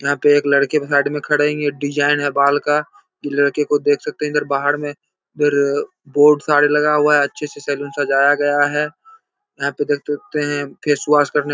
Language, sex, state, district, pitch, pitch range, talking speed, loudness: Hindi, male, Bihar, Begusarai, 145 Hz, 145-150 Hz, 225 wpm, -17 LUFS